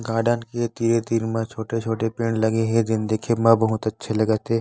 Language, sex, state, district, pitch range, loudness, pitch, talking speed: Chhattisgarhi, male, Chhattisgarh, Bastar, 110-115 Hz, -22 LUFS, 115 Hz, 235 wpm